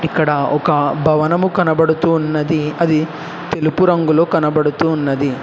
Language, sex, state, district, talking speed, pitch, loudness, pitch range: Telugu, male, Telangana, Hyderabad, 100 wpm, 155 Hz, -15 LUFS, 150-165 Hz